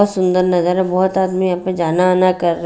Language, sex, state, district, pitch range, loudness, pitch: Hindi, female, Bihar, Patna, 175-185 Hz, -15 LUFS, 185 Hz